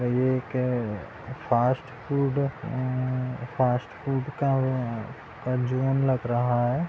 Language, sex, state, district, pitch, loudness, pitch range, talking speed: Hindi, male, Bihar, Purnia, 130 Hz, -27 LUFS, 125-135 Hz, 115 wpm